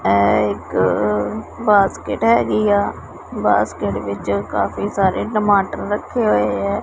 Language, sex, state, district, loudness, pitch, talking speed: Punjabi, male, Punjab, Pathankot, -18 LUFS, 105 Hz, 115 wpm